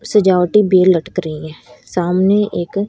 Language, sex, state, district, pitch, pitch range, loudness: Hindi, female, Haryana, Rohtak, 185 Hz, 170-200 Hz, -14 LUFS